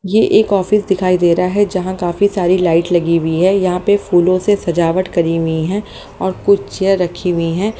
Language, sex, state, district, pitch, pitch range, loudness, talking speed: Hindi, female, Haryana, Jhajjar, 185 Hz, 175-200 Hz, -14 LUFS, 215 wpm